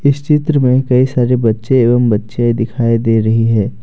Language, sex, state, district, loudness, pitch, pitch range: Hindi, male, Jharkhand, Deoghar, -13 LUFS, 120 Hz, 115-130 Hz